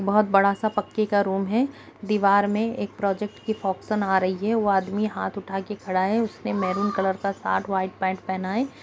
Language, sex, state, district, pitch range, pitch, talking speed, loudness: Hindi, female, Uttar Pradesh, Jalaun, 190-210 Hz, 200 Hz, 210 wpm, -24 LUFS